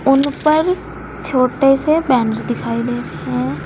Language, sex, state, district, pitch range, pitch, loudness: Hindi, female, Uttar Pradesh, Saharanpur, 220-295 Hz, 255 Hz, -17 LUFS